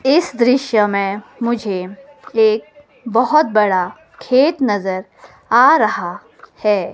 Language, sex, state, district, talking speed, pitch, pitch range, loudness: Hindi, female, Himachal Pradesh, Shimla, 110 wpm, 225 Hz, 200-265 Hz, -16 LUFS